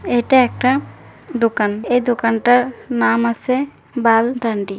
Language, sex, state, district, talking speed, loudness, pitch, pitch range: Bengali, female, West Bengal, Kolkata, 140 wpm, -17 LUFS, 240 Hz, 230-255 Hz